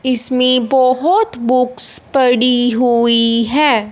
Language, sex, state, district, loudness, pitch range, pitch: Hindi, male, Punjab, Fazilka, -13 LUFS, 235-260 Hz, 250 Hz